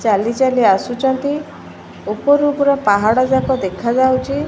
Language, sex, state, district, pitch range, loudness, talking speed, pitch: Odia, female, Odisha, Malkangiri, 220-280 Hz, -16 LUFS, 95 wpm, 260 Hz